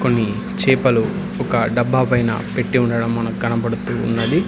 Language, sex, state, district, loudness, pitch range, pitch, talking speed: Telugu, male, Telangana, Hyderabad, -19 LUFS, 115-125 Hz, 115 Hz, 135 wpm